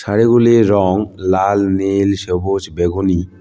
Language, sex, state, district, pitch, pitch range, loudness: Bengali, male, West Bengal, Cooch Behar, 95 Hz, 95-100 Hz, -15 LUFS